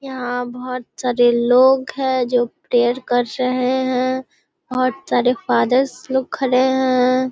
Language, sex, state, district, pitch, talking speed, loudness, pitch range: Hindi, female, Bihar, Muzaffarpur, 255 Hz, 130 wpm, -18 LUFS, 245-260 Hz